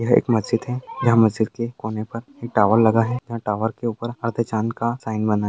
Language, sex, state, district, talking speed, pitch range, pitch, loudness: Hindi, male, Bihar, Jamui, 250 wpm, 110-120 Hz, 115 Hz, -21 LUFS